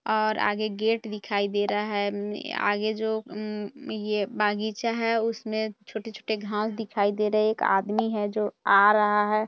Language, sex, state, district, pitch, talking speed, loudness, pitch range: Hindi, female, Bihar, Purnia, 215 Hz, 165 wpm, -26 LUFS, 205-220 Hz